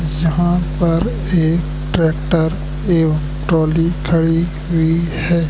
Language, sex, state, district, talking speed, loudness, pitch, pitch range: Hindi, male, Madhya Pradesh, Katni, 100 wpm, -17 LUFS, 165 Hz, 155-170 Hz